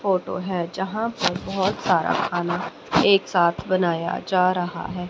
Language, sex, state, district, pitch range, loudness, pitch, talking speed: Hindi, female, Haryana, Rohtak, 175-190 Hz, -22 LUFS, 185 Hz, 155 wpm